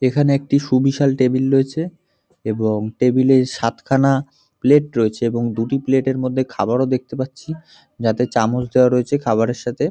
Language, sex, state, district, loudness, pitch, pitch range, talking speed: Bengali, male, West Bengal, North 24 Parganas, -18 LUFS, 130 Hz, 120-135 Hz, 140 wpm